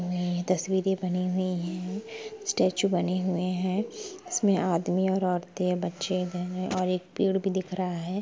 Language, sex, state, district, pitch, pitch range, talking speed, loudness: Hindi, female, Bihar, Sitamarhi, 185 Hz, 180-195 Hz, 145 wpm, -28 LUFS